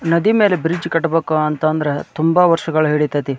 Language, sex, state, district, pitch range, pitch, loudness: Kannada, male, Karnataka, Dharwad, 155-170 Hz, 165 Hz, -16 LUFS